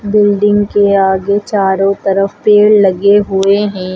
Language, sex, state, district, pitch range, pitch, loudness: Hindi, female, Uttar Pradesh, Lucknow, 195-205 Hz, 200 Hz, -11 LUFS